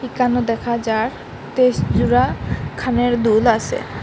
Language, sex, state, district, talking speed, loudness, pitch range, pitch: Bengali, female, Assam, Hailakandi, 120 wpm, -18 LUFS, 230-250 Hz, 240 Hz